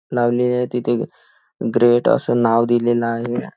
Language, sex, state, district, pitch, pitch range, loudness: Marathi, male, Maharashtra, Nagpur, 120 Hz, 115-120 Hz, -18 LUFS